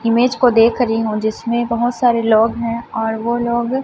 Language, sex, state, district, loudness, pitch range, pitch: Hindi, male, Chhattisgarh, Raipur, -16 LUFS, 225-240 Hz, 235 Hz